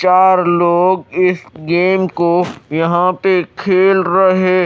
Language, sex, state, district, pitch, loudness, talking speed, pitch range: Hindi, male, Odisha, Malkangiri, 180 Hz, -13 LUFS, 115 wpm, 175-185 Hz